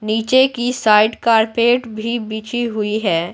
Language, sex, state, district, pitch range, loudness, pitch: Hindi, female, Bihar, Patna, 215-240 Hz, -16 LUFS, 225 Hz